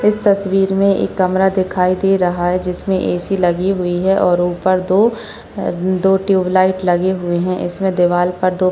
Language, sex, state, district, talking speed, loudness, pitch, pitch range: Hindi, female, Maharashtra, Chandrapur, 185 wpm, -16 LUFS, 185 Hz, 180-195 Hz